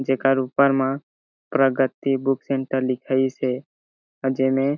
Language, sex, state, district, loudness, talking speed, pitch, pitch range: Chhattisgarhi, male, Chhattisgarh, Jashpur, -22 LUFS, 125 wpm, 130 Hz, 130-135 Hz